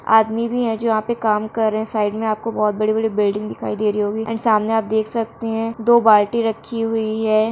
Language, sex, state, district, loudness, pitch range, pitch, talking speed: Hindi, female, Andhra Pradesh, Krishna, -19 LUFS, 215-225 Hz, 220 Hz, 265 wpm